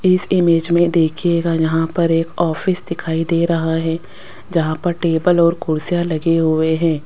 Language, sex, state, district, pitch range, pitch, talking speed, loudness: Hindi, female, Rajasthan, Jaipur, 160-170 Hz, 165 Hz, 170 wpm, -17 LUFS